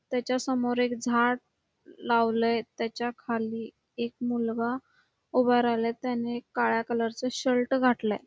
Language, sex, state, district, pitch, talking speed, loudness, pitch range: Marathi, female, Karnataka, Belgaum, 240 Hz, 125 wpm, -28 LUFS, 230-250 Hz